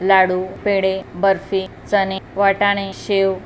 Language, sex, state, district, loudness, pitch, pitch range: Marathi, female, Maharashtra, Pune, -18 LUFS, 195 Hz, 190-200 Hz